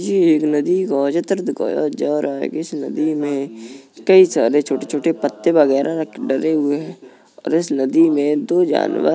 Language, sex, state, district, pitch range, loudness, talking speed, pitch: Hindi, female, Uttar Pradesh, Jalaun, 140-165 Hz, -18 LUFS, 175 wpm, 150 Hz